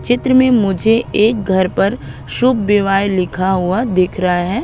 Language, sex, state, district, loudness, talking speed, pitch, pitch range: Hindi, female, Madhya Pradesh, Katni, -14 LUFS, 170 wpm, 200 Hz, 185-235 Hz